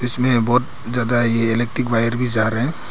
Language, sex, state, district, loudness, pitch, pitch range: Hindi, male, Arunachal Pradesh, Papum Pare, -18 LUFS, 120 Hz, 115-125 Hz